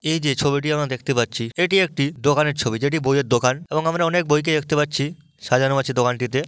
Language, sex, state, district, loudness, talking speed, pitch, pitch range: Bengali, male, West Bengal, Malda, -20 LUFS, 215 wpm, 145 Hz, 130-155 Hz